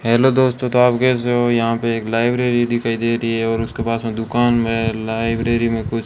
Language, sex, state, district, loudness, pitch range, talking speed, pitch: Hindi, male, Rajasthan, Bikaner, -18 LUFS, 115-120 Hz, 240 wpm, 115 Hz